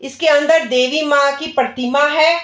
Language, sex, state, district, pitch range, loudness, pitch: Hindi, female, Bihar, Darbhanga, 265-315 Hz, -15 LUFS, 290 Hz